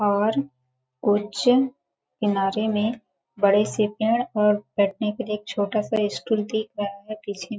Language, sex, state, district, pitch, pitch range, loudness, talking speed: Hindi, female, Chhattisgarh, Balrampur, 210 Hz, 200-220 Hz, -24 LUFS, 160 wpm